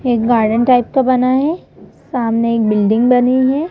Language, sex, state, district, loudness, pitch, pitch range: Hindi, female, Madhya Pradesh, Bhopal, -14 LUFS, 250 Hz, 230-260 Hz